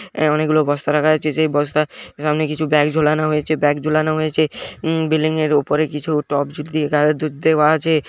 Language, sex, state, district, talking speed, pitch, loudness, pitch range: Bengali, male, West Bengal, Jhargram, 195 wpm, 155 Hz, -18 LUFS, 150-155 Hz